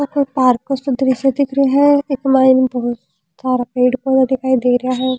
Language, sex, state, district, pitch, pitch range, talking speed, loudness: Rajasthani, female, Rajasthan, Churu, 260 Hz, 250-270 Hz, 220 wpm, -15 LUFS